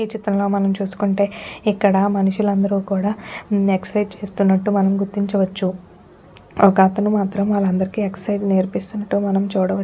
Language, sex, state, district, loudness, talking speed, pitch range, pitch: Telugu, female, Telangana, Nalgonda, -19 LUFS, 105 wpm, 195-205 Hz, 200 Hz